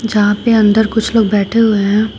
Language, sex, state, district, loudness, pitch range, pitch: Hindi, female, Uttar Pradesh, Shamli, -12 LUFS, 205-225 Hz, 220 Hz